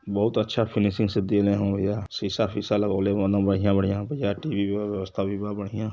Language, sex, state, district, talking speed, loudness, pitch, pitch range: Hindi, male, Uttar Pradesh, Varanasi, 190 wpm, -25 LUFS, 100 Hz, 100-105 Hz